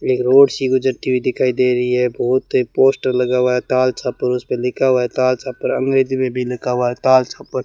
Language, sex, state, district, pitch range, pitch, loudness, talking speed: Hindi, male, Rajasthan, Bikaner, 125-130 Hz, 130 Hz, -17 LUFS, 250 wpm